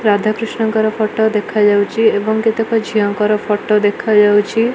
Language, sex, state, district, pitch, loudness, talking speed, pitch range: Odia, female, Odisha, Malkangiri, 215 Hz, -14 LUFS, 115 wpm, 210-220 Hz